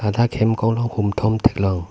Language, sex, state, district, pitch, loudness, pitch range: Karbi, male, Assam, Karbi Anglong, 110 Hz, -20 LUFS, 105-115 Hz